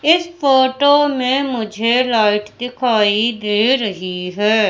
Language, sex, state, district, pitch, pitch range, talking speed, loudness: Hindi, female, Madhya Pradesh, Katni, 235 Hz, 210-265 Hz, 115 wpm, -16 LUFS